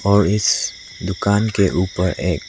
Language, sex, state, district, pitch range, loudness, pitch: Hindi, male, Arunachal Pradesh, Lower Dibang Valley, 90-100 Hz, -18 LUFS, 100 Hz